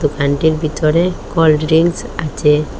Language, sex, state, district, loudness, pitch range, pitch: Bengali, female, Assam, Hailakandi, -15 LUFS, 150-160 Hz, 155 Hz